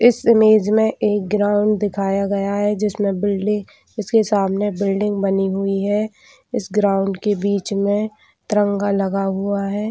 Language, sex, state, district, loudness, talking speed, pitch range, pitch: Hindi, female, Chhattisgarh, Raigarh, -19 LUFS, 150 wpm, 195-210 Hz, 205 Hz